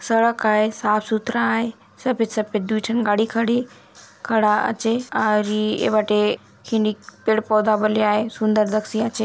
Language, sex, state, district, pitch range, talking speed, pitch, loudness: Hindi, female, Chhattisgarh, Bastar, 215-225 Hz, 145 wpm, 220 Hz, -20 LUFS